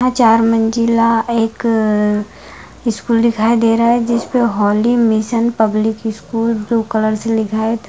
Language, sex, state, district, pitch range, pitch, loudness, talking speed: Hindi, female, Bihar, Jamui, 220-230 Hz, 225 Hz, -15 LUFS, 135 wpm